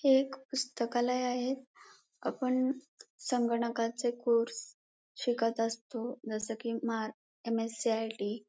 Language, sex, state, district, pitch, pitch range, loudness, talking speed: Marathi, female, Maharashtra, Pune, 235 Hz, 230-260 Hz, -34 LUFS, 100 wpm